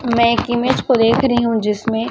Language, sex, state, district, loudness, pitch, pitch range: Hindi, female, Chhattisgarh, Raipur, -16 LUFS, 235 Hz, 225-240 Hz